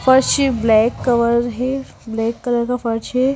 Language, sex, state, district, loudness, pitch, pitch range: Hindi, female, Himachal Pradesh, Shimla, -17 LUFS, 240 Hz, 230-260 Hz